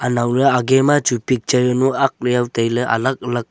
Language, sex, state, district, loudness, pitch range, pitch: Wancho, male, Arunachal Pradesh, Longding, -17 LUFS, 120-130 Hz, 125 Hz